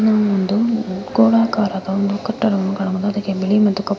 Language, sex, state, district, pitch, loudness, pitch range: Kannada, female, Karnataka, Mysore, 205 Hz, -18 LUFS, 195-220 Hz